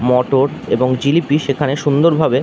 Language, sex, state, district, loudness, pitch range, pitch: Bengali, male, West Bengal, Dakshin Dinajpur, -15 LUFS, 130-150 Hz, 140 Hz